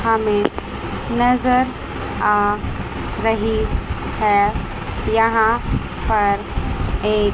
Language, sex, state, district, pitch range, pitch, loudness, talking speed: Hindi, female, Chandigarh, Chandigarh, 205-225 Hz, 220 Hz, -19 LUFS, 65 wpm